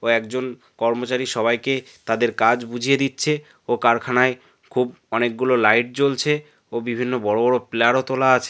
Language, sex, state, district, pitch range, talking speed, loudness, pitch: Bengali, male, West Bengal, North 24 Parganas, 120-130 Hz, 150 wpm, -21 LUFS, 125 Hz